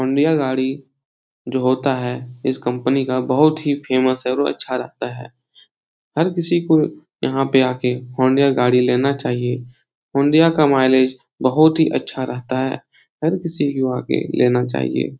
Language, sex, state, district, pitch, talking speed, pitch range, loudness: Hindi, male, Bihar, Lakhisarai, 130 Hz, 155 wpm, 125-140 Hz, -18 LUFS